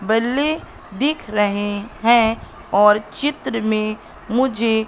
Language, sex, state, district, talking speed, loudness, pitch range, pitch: Hindi, female, Madhya Pradesh, Katni, 100 wpm, -19 LUFS, 210-255 Hz, 220 Hz